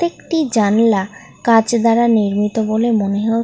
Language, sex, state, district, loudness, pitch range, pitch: Bengali, female, West Bengal, North 24 Parganas, -15 LUFS, 210-230 Hz, 225 Hz